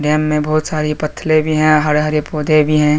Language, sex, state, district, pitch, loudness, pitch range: Hindi, male, Jharkhand, Deoghar, 155 Hz, -15 LUFS, 150-155 Hz